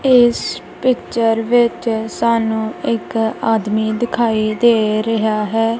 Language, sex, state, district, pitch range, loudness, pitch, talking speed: Punjabi, female, Punjab, Kapurthala, 220-235 Hz, -16 LUFS, 225 Hz, 105 wpm